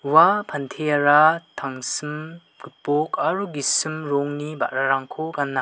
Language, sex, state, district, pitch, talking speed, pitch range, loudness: Garo, male, Meghalaya, West Garo Hills, 150 Hz, 95 wpm, 140-155 Hz, -21 LUFS